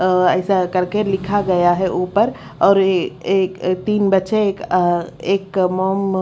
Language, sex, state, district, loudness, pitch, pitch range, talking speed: Hindi, female, Haryana, Rohtak, -17 LUFS, 190 Hz, 185-195 Hz, 145 wpm